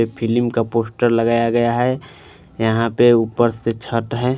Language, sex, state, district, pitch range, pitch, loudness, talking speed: Hindi, male, Punjab, Fazilka, 115-120 Hz, 115 Hz, -18 LUFS, 165 wpm